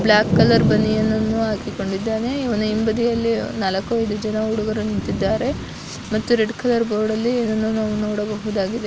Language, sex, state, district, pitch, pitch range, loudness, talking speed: Kannada, female, Karnataka, Dakshina Kannada, 220 Hz, 215-225 Hz, -20 LUFS, 120 wpm